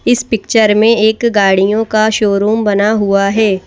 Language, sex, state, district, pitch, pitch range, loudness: Hindi, female, Madhya Pradesh, Bhopal, 215 Hz, 200-220 Hz, -11 LUFS